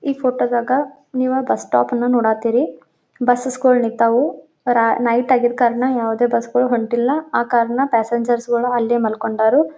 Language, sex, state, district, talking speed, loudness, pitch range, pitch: Kannada, female, Karnataka, Belgaum, 145 wpm, -18 LUFS, 235-255 Hz, 240 Hz